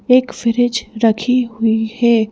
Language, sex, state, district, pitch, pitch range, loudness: Hindi, female, Madhya Pradesh, Bhopal, 230 Hz, 225-245 Hz, -16 LUFS